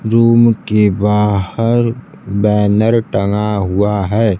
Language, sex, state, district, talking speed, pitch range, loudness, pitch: Hindi, male, Bihar, Kaimur, 95 wpm, 100-115 Hz, -14 LUFS, 105 Hz